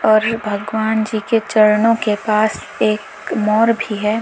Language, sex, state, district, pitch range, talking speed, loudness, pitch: Hindi, female, Uttar Pradesh, Lalitpur, 215-220 Hz, 140 wpm, -17 LUFS, 215 Hz